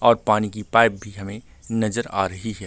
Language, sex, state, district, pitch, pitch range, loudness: Hindi, male, Chhattisgarh, Bilaspur, 105 Hz, 100-115 Hz, -21 LUFS